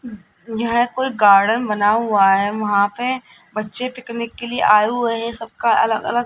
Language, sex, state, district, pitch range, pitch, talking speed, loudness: Hindi, female, Rajasthan, Jaipur, 210-240 Hz, 230 Hz, 180 wpm, -18 LUFS